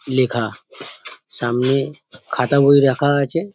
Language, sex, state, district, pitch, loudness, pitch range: Bengali, male, West Bengal, Paschim Medinipur, 135 Hz, -17 LUFS, 125-145 Hz